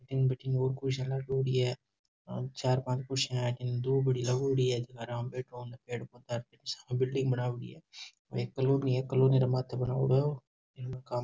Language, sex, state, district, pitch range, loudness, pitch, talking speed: Rajasthani, male, Rajasthan, Churu, 125-130 Hz, -32 LUFS, 130 Hz, 170 wpm